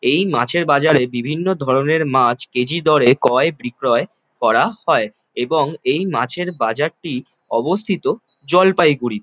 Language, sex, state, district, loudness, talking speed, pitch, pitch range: Bengali, male, West Bengal, Jalpaiguri, -17 LUFS, 115 wpm, 150 Hz, 125-170 Hz